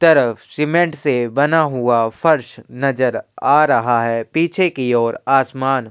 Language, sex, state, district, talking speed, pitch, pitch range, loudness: Hindi, male, Uttar Pradesh, Jyotiba Phule Nagar, 150 wpm, 130 Hz, 120-155 Hz, -17 LUFS